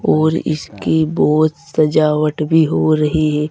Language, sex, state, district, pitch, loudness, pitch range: Hindi, male, Uttar Pradesh, Saharanpur, 155 Hz, -15 LUFS, 150-155 Hz